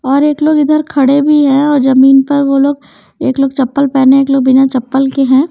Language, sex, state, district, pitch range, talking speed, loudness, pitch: Hindi, female, Haryana, Jhajjar, 270-285 Hz, 240 wpm, -10 LUFS, 275 Hz